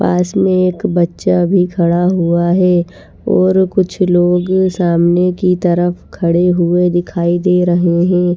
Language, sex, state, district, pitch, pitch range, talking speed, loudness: Hindi, female, Chhattisgarh, Raipur, 180 Hz, 175-185 Hz, 145 wpm, -13 LUFS